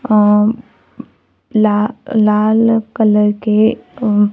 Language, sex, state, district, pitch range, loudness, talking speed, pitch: Hindi, female, Maharashtra, Gondia, 210-225 Hz, -13 LUFS, 85 wpm, 215 Hz